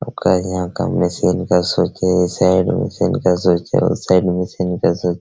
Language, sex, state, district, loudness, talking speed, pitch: Hindi, male, Bihar, Araria, -17 LUFS, 140 wpm, 90 Hz